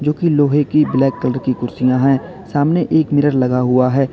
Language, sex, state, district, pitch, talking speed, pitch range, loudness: Hindi, male, Uttar Pradesh, Lalitpur, 135 Hz, 190 wpm, 130-150 Hz, -15 LUFS